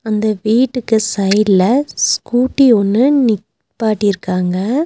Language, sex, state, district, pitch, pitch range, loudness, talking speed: Tamil, female, Tamil Nadu, Nilgiris, 220 Hz, 200-250 Hz, -14 LUFS, 85 wpm